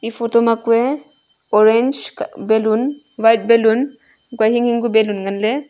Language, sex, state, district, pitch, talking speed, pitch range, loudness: Wancho, female, Arunachal Pradesh, Longding, 230 Hz, 125 wpm, 220-240 Hz, -16 LUFS